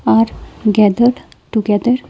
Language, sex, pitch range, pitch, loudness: English, female, 205-240 Hz, 215 Hz, -15 LUFS